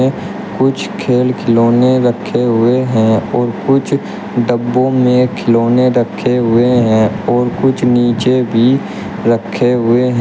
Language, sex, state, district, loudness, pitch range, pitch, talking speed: Hindi, male, Uttar Pradesh, Shamli, -13 LUFS, 115-125 Hz, 120 Hz, 125 wpm